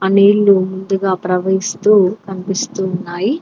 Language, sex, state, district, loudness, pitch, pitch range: Telugu, female, Telangana, Mahabubabad, -15 LUFS, 190 Hz, 185-200 Hz